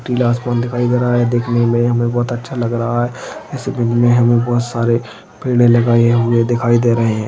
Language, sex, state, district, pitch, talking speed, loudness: Hindi, male, Maharashtra, Chandrapur, 120 Hz, 190 wpm, -15 LUFS